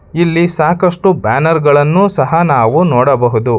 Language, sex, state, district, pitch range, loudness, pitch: Kannada, male, Karnataka, Bangalore, 140-175 Hz, -11 LUFS, 160 Hz